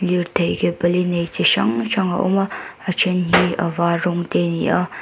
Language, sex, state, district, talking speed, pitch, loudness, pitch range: Mizo, female, Mizoram, Aizawl, 240 wpm, 175 Hz, -19 LUFS, 170-180 Hz